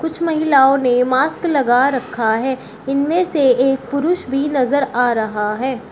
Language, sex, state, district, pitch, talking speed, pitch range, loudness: Hindi, female, Uttar Pradesh, Shamli, 265 Hz, 160 wpm, 250-285 Hz, -16 LUFS